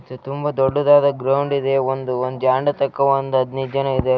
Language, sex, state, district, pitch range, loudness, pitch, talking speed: Kannada, male, Karnataka, Raichur, 130-140 Hz, -19 LUFS, 135 Hz, 160 wpm